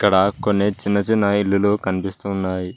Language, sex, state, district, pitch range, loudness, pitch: Telugu, male, Telangana, Mahabubabad, 95-100 Hz, -19 LUFS, 100 Hz